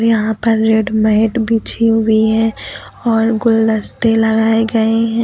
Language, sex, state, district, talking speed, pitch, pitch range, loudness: Hindi, female, Uttar Pradesh, Lucknow, 135 wpm, 225 Hz, 220-225 Hz, -13 LUFS